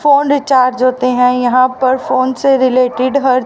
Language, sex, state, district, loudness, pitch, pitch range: Hindi, female, Haryana, Rohtak, -12 LUFS, 255 Hz, 255-265 Hz